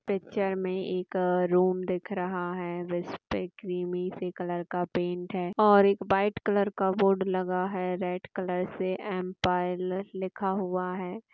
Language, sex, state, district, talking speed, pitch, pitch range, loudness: Hindi, female, Chhattisgarh, Raigarh, 165 wpm, 185 Hz, 180-190 Hz, -29 LUFS